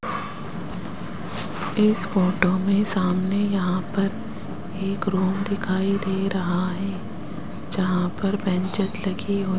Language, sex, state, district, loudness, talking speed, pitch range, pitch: Hindi, male, Rajasthan, Jaipur, -25 LUFS, 115 wpm, 185-200 Hz, 190 Hz